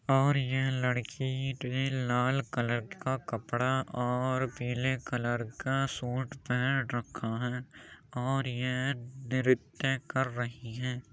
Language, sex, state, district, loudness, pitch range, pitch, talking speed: Hindi, male, Uttar Pradesh, Jyotiba Phule Nagar, -32 LUFS, 125-130 Hz, 130 Hz, 120 wpm